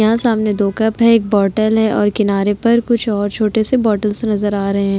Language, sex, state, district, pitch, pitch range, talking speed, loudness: Hindi, female, Uttar Pradesh, Jalaun, 215 Hz, 205-225 Hz, 240 wpm, -15 LUFS